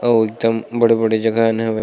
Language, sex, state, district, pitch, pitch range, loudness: Chhattisgarhi, male, Chhattisgarh, Sarguja, 115 Hz, 110-115 Hz, -17 LUFS